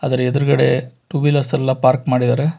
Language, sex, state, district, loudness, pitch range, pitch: Kannada, male, Karnataka, Bangalore, -17 LUFS, 125-145 Hz, 130 Hz